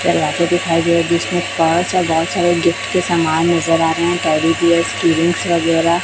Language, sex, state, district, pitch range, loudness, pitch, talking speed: Hindi, male, Chhattisgarh, Raipur, 165-175 Hz, -15 LUFS, 170 Hz, 190 wpm